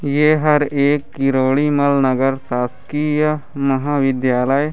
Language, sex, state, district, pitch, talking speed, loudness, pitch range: Chhattisgarhi, male, Chhattisgarh, Raigarh, 140 Hz, 100 wpm, -17 LUFS, 135-150 Hz